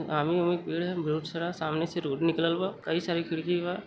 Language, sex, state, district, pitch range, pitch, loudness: Hindi, female, Uttar Pradesh, Gorakhpur, 160-175 Hz, 165 Hz, -30 LUFS